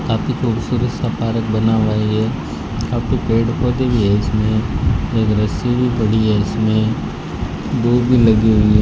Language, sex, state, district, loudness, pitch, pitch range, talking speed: Hindi, male, Rajasthan, Bikaner, -17 LUFS, 110 Hz, 105-120 Hz, 170 wpm